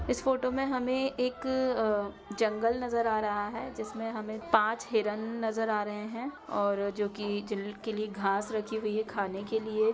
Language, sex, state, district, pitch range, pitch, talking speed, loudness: Hindi, female, Bihar, Araria, 210-235 Hz, 220 Hz, 185 wpm, -31 LUFS